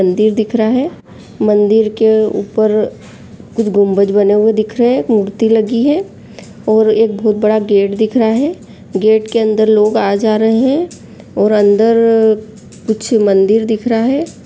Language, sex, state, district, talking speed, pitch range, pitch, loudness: Angika, female, Bihar, Supaul, 175 wpm, 210-225 Hz, 220 Hz, -12 LUFS